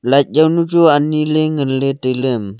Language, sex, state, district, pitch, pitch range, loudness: Wancho, male, Arunachal Pradesh, Longding, 140 Hz, 130-155 Hz, -14 LUFS